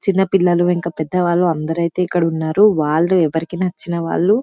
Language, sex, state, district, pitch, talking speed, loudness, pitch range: Telugu, female, Telangana, Karimnagar, 175 Hz, 165 wpm, -17 LUFS, 165-185 Hz